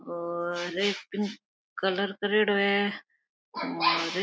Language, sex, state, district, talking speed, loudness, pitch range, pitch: Rajasthani, female, Rajasthan, Nagaur, 115 wpm, -28 LUFS, 175-200 Hz, 200 Hz